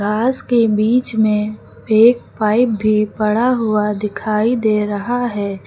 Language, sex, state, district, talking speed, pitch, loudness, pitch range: Hindi, female, Uttar Pradesh, Lucknow, 140 wpm, 215 Hz, -16 LUFS, 210-235 Hz